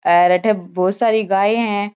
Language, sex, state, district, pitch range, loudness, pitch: Marwari, female, Rajasthan, Churu, 185-215 Hz, -16 LUFS, 205 Hz